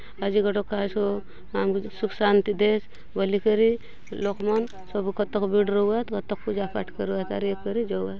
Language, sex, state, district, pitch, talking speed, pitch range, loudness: Halbi, female, Chhattisgarh, Bastar, 205 Hz, 160 wpm, 200-210 Hz, -26 LUFS